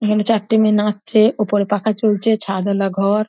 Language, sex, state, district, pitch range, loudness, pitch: Bengali, female, West Bengal, North 24 Parganas, 205-220 Hz, -17 LUFS, 210 Hz